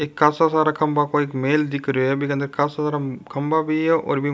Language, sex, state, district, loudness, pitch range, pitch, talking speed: Rajasthani, male, Rajasthan, Nagaur, -21 LUFS, 140-155 Hz, 150 Hz, 205 wpm